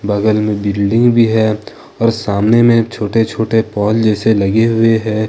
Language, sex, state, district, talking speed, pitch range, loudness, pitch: Hindi, male, Jharkhand, Ranchi, 170 wpm, 105-115 Hz, -13 LUFS, 110 Hz